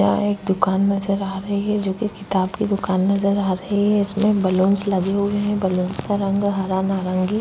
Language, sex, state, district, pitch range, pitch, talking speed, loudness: Hindi, female, Uttar Pradesh, Budaun, 190-200 Hz, 195 Hz, 210 wpm, -20 LUFS